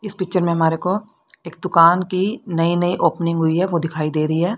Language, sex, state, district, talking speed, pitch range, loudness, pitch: Hindi, female, Haryana, Rohtak, 235 wpm, 165-185 Hz, -18 LUFS, 170 Hz